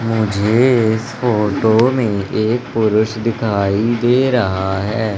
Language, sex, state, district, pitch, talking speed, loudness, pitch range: Hindi, male, Madhya Pradesh, Umaria, 110 Hz, 115 wpm, -16 LUFS, 105-120 Hz